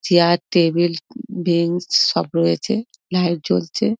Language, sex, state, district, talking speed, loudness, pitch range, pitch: Bengali, female, West Bengal, Dakshin Dinajpur, 105 wpm, -19 LUFS, 170-205 Hz, 175 Hz